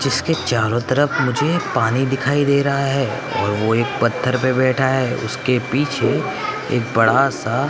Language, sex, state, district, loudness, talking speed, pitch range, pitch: Hindi, male, Gujarat, Gandhinagar, -18 LUFS, 165 wpm, 125-140 Hz, 130 Hz